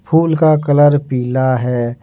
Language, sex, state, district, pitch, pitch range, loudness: Hindi, male, Jharkhand, Ranchi, 140 Hz, 125-155 Hz, -14 LUFS